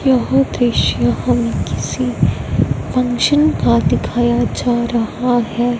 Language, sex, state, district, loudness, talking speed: Hindi, female, Punjab, Fazilka, -16 LUFS, 105 wpm